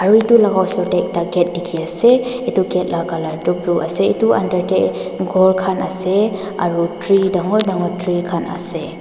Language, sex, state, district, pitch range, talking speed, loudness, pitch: Nagamese, female, Nagaland, Dimapur, 175-195 Hz, 180 wpm, -17 LUFS, 185 Hz